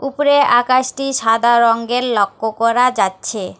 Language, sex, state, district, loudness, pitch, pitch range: Bengali, female, West Bengal, Alipurduar, -15 LUFS, 235 Hz, 225-260 Hz